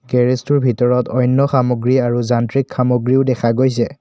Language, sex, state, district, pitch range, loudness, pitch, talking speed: Assamese, male, Assam, Kamrup Metropolitan, 120-130 Hz, -16 LUFS, 125 Hz, 150 wpm